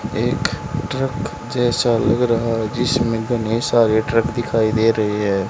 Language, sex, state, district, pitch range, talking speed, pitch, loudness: Hindi, male, Haryana, Charkhi Dadri, 110-120 Hz, 150 wpm, 115 Hz, -19 LUFS